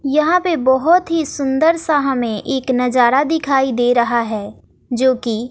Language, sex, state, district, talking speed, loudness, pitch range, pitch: Hindi, female, Bihar, West Champaran, 165 wpm, -16 LUFS, 245-310 Hz, 265 Hz